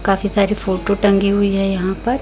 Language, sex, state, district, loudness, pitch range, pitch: Hindi, female, Chhattisgarh, Raipur, -17 LUFS, 195-205 Hz, 200 Hz